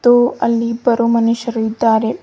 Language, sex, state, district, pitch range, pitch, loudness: Kannada, female, Karnataka, Bidar, 225-240 Hz, 230 Hz, -15 LUFS